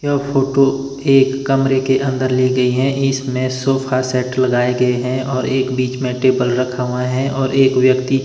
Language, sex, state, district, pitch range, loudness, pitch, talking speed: Hindi, male, Himachal Pradesh, Shimla, 130-135 Hz, -16 LUFS, 130 Hz, 190 wpm